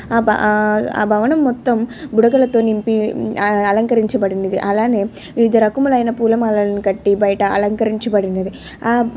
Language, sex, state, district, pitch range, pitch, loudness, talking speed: Telugu, female, Andhra Pradesh, Krishna, 205-230 Hz, 215 Hz, -16 LUFS, 85 wpm